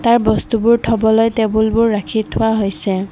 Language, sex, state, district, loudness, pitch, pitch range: Assamese, female, Assam, Kamrup Metropolitan, -15 LUFS, 220 Hz, 215-225 Hz